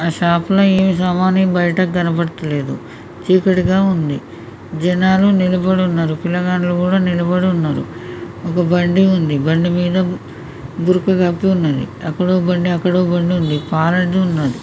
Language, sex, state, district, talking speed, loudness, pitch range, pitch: Telugu, female, Telangana, Karimnagar, 135 wpm, -16 LUFS, 165-185 Hz, 180 Hz